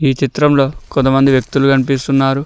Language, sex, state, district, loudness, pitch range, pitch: Telugu, male, Telangana, Mahabubabad, -13 LUFS, 135-140 Hz, 135 Hz